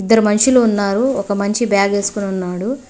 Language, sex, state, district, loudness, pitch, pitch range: Telugu, female, Telangana, Hyderabad, -16 LUFS, 205 Hz, 200-235 Hz